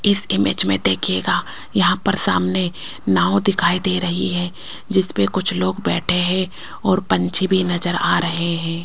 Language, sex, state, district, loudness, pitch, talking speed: Hindi, female, Rajasthan, Jaipur, -19 LUFS, 170 Hz, 170 wpm